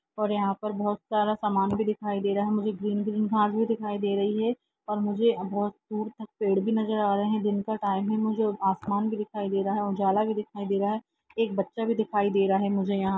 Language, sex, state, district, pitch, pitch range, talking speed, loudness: Hindi, female, Jharkhand, Sahebganj, 210 Hz, 200-215 Hz, 260 wpm, -27 LUFS